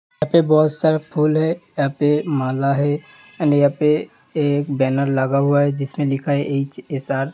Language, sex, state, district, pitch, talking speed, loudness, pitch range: Hindi, male, Uttar Pradesh, Hamirpur, 145 Hz, 215 wpm, -19 LUFS, 140-155 Hz